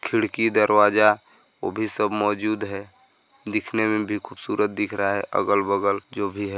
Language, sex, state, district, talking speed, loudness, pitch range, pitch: Hindi, male, Chhattisgarh, Sarguja, 175 wpm, -23 LUFS, 100-105 Hz, 105 Hz